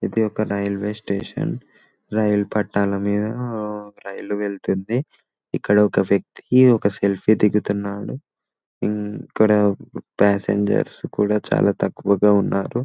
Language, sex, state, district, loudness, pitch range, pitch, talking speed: Telugu, male, Telangana, Nalgonda, -20 LUFS, 100-105 Hz, 105 Hz, 105 wpm